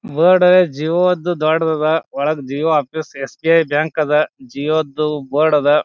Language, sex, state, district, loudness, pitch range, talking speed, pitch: Kannada, male, Karnataka, Bijapur, -16 LUFS, 150-165 Hz, 165 wpm, 155 Hz